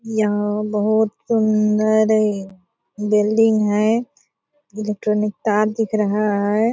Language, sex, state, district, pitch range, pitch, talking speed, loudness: Hindi, female, Bihar, Purnia, 210-220 Hz, 215 Hz, 90 wpm, -19 LUFS